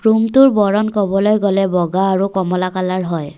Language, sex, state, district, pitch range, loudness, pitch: Assamese, female, Assam, Kamrup Metropolitan, 185-210 Hz, -15 LUFS, 195 Hz